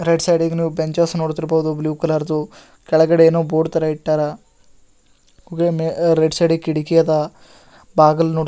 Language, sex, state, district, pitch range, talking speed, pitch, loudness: Kannada, male, Karnataka, Gulbarga, 155-165 Hz, 115 wpm, 160 Hz, -17 LUFS